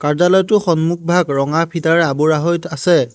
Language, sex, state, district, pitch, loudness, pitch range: Assamese, male, Assam, Hailakandi, 170 Hz, -15 LUFS, 155-175 Hz